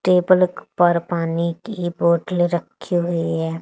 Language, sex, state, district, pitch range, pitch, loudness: Hindi, female, Haryana, Charkhi Dadri, 170-180 Hz, 175 Hz, -20 LUFS